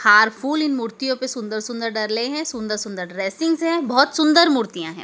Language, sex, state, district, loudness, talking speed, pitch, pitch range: Hindi, female, Madhya Pradesh, Dhar, -20 LUFS, 205 wpm, 235 Hz, 215-290 Hz